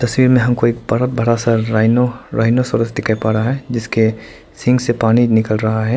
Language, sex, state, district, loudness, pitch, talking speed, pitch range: Hindi, male, Arunachal Pradesh, Lower Dibang Valley, -15 LUFS, 115 Hz, 220 wpm, 110-125 Hz